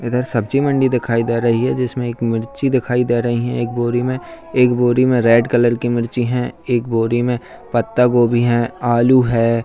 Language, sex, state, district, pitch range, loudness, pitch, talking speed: Hindi, male, Bihar, Bhagalpur, 120-125 Hz, -17 LUFS, 120 Hz, 200 wpm